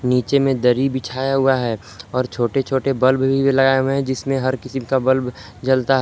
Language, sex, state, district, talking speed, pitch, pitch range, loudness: Hindi, male, Jharkhand, Palamu, 200 wpm, 130 Hz, 125-135 Hz, -19 LUFS